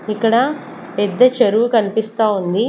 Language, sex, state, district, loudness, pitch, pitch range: Telugu, female, Andhra Pradesh, Sri Satya Sai, -16 LUFS, 220 Hz, 205-240 Hz